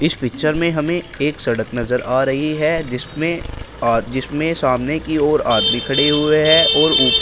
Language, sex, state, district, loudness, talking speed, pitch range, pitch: Hindi, male, Uttar Pradesh, Shamli, -16 LUFS, 175 wpm, 125-155 Hz, 150 Hz